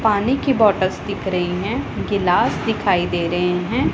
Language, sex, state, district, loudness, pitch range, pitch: Hindi, female, Punjab, Pathankot, -19 LUFS, 180-230 Hz, 195 Hz